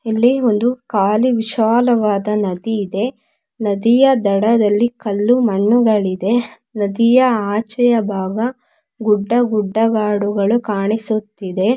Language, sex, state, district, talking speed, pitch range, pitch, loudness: Kannada, female, Karnataka, Mysore, 70 wpm, 205-240 Hz, 220 Hz, -16 LUFS